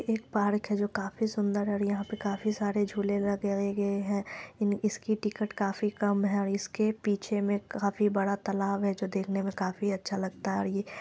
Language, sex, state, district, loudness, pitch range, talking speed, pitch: Hindi, female, Bihar, Lakhisarai, -30 LUFS, 200-210 Hz, 205 wpm, 200 Hz